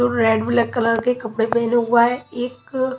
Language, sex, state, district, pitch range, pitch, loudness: Hindi, female, Himachal Pradesh, Shimla, 230-245 Hz, 235 Hz, -19 LUFS